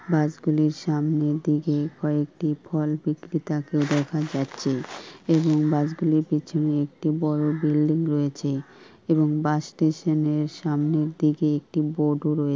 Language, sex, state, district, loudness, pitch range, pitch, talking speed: Bengali, female, West Bengal, Purulia, -24 LUFS, 150-155 Hz, 150 Hz, 125 wpm